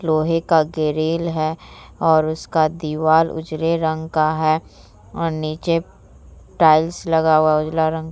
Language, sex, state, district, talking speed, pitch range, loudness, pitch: Hindi, female, Bihar, Vaishali, 140 wpm, 155-160 Hz, -19 LUFS, 160 Hz